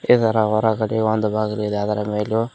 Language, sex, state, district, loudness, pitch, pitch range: Kannada, male, Karnataka, Koppal, -20 LUFS, 110 Hz, 105-110 Hz